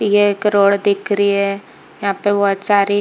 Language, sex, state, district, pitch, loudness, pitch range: Hindi, female, Chhattisgarh, Bilaspur, 200 Hz, -16 LUFS, 200-205 Hz